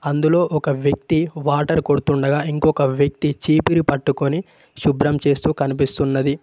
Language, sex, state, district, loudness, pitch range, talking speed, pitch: Telugu, male, Telangana, Mahabubabad, -19 LUFS, 140-155 Hz, 110 wpm, 145 Hz